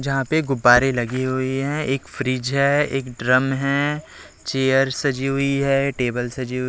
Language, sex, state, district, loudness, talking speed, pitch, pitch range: Hindi, male, Chhattisgarh, Raipur, -20 LUFS, 170 wpm, 135 Hz, 130-140 Hz